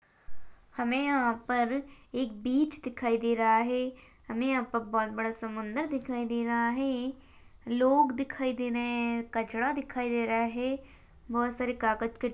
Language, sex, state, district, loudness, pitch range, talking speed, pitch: Hindi, female, Maharashtra, Chandrapur, -30 LUFS, 235-260 Hz, 160 wpm, 245 Hz